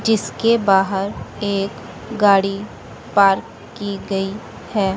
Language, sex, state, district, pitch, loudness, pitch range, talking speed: Hindi, female, Chandigarh, Chandigarh, 200 Hz, -19 LUFS, 195-205 Hz, 95 wpm